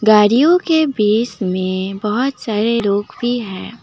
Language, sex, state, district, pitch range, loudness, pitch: Hindi, female, Assam, Kamrup Metropolitan, 200-245 Hz, -16 LUFS, 215 Hz